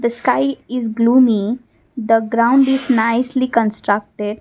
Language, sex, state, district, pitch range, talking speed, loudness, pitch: English, female, Assam, Kamrup Metropolitan, 225-255 Hz, 125 wpm, -16 LUFS, 235 Hz